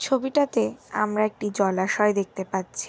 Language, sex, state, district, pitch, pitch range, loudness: Bengali, female, West Bengal, Jhargram, 210 Hz, 190-215 Hz, -24 LUFS